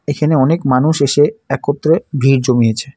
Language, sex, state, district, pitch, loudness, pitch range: Bengali, male, West Bengal, Alipurduar, 140 Hz, -14 LUFS, 135-155 Hz